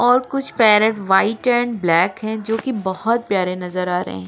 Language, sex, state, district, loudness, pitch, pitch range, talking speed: Hindi, female, Uttar Pradesh, Jyotiba Phule Nagar, -18 LUFS, 215 Hz, 185-235 Hz, 210 wpm